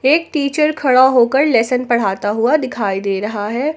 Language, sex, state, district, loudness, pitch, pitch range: Hindi, female, Jharkhand, Ranchi, -15 LUFS, 250 Hz, 215-280 Hz